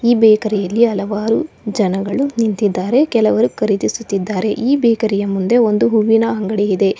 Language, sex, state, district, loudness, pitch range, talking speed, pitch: Kannada, female, Karnataka, Bangalore, -15 LUFS, 205-230 Hz, 135 wpm, 215 Hz